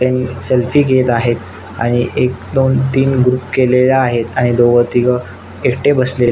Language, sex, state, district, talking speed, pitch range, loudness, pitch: Marathi, male, Maharashtra, Nagpur, 160 wpm, 120-130 Hz, -14 LUFS, 125 Hz